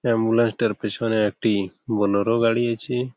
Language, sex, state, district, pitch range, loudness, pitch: Bengali, male, West Bengal, Malda, 105-115 Hz, -22 LUFS, 115 Hz